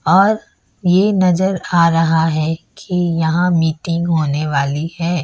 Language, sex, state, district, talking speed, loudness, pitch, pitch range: Hindi, female, Chhattisgarh, Raipur, 135 wpm, -16 LUFS, 170 Hz, 160-180 Hz